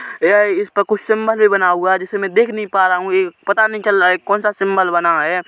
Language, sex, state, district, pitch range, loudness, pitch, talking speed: Hindi, male, Chhattisgarh, Kabirdham, 190-215 Hz, -15 LUFS, 200 Hz, 260 wpm